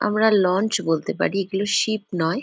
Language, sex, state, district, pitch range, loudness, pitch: Bengali, female, West Bengal, Jalpaiguri, 180-215 Hz, -21 LUFS, 195 Hz